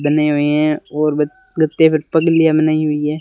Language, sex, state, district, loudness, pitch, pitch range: Hindi, male, Rajasthan, Bikaner, -15 LUFS, 155 Hz, 150-160 Hz